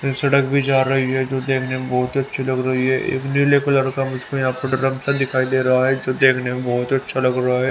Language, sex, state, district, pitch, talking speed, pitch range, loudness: Hindi, male, Haryana, Rohtak, 130 Hz, 290 wpm, 130-135 Hz, -19 LUFS